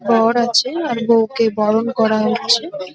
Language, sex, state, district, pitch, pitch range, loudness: Bengali, female, West Bengal, North 24 Parganas, 230 Hz, 220-235 Hz, -16 LUFS